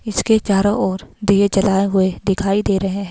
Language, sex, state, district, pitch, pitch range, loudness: Hindi, female, Himachal Pradesh, Shimla, 195 Hz, 195-205 Hz, -17 LUFS